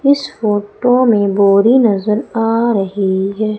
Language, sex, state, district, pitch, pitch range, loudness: Hindi, female, Madhya Pradesh, Umaria, 215 Hz, 200-235 Hz, -13 LUFS